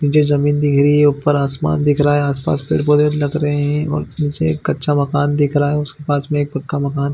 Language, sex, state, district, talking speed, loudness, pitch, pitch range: Hindi, male, Chhattisgarh, Bilaspur, 235 wpm, -16 LUFS, 145 Hz, 145-150 Hz